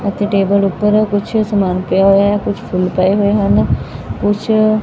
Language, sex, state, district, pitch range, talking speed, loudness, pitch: Punjabi, female, Punjab, Fazilka, 195-210 Hz, 175 wpm, -14 LUFS, 200 Hz